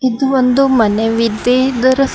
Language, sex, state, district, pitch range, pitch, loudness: Kannada, female, Karnataka, Bidar, 230-265 Hz, 255 Hz, -13 LUFS